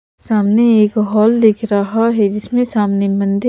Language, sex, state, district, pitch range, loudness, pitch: Hindi, female, Chandigarh, Chandigarh, 205-225 Hz, -14 LUFS, 215 Hz